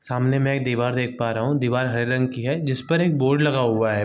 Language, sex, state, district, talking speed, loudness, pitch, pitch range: Hindi, male, Bihar, Sitamarhi, 310 wpm, -22 LUFS, 130 Hz, 120-135 Hz